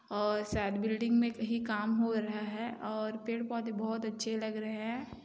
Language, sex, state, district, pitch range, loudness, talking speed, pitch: Hindi, female, Chhattisgarh, Bilaspur, 215-230 Hz, -34 LUFS, 195 wpm, 220 Hz